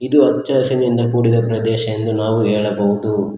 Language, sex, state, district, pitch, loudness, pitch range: Kannada, male, Karnataka, Koppal, 110 Hz, -16 LUFS, 105-120 Hz